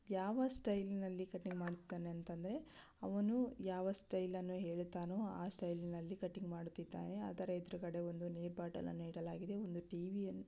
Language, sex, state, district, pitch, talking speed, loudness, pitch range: Kannada, female, Karnataka, Belgaum, 185 Hz, 125 wpm, -44 LUFS, 175-195 Hz